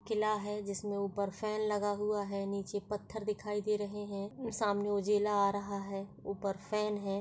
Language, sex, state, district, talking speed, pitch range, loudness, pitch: Hindi, female, Chhattisgarh, Bastar, 185 wpm, 200-210 Hz, -36 LUFS, 205 Hz